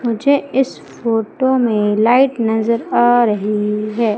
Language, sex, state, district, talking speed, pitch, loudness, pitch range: Hindi, female, Madhya Pradesh, Umaria, 130 wpm, 230 Hz, -16 LUFS, 215-250 Hz